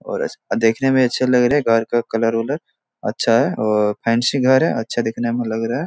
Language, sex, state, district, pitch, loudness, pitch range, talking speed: Hindi, male, Bihar, Jahanabad, 120 Hz, -18 LUFS, 115-130 Hz, 245 wpm